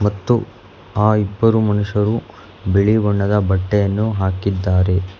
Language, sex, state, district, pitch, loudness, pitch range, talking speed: Kannada, male, Karnataka, Bangalore, 105 Hz, -17 LUFS, 95-105 Hz, 90 wpm